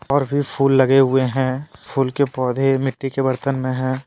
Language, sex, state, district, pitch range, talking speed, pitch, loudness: Hindi, male, Jharkhand, Deoghar, 130-135 Hz, 205 wpm, 135 Hz, -19 LUFS